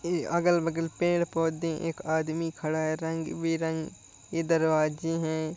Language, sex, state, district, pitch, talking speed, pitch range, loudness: Hindi, male, Bihar, Jahanabad, 165 Hz, 120 wpm, 160-165 Hz, -29 LUFS